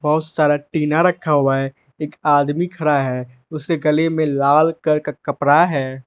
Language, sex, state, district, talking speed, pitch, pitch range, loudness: Hindi, male, Arunachal Pradesh, Lower Dibang Valley, 180 wpm, 150 Hz, 140-160 Hz, -18 LUFS